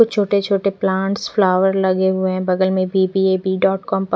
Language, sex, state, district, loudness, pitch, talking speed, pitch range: Hindi, female, Chandigarh, Chandigarh, -17 LUFS, 190 Hz, 200 wpm, 185-195 Hz